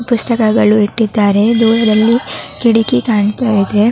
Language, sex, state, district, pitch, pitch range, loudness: Kannada, female, Karnataka, Raichur, 225 Hz, 210-235 Hz, -12 LUFS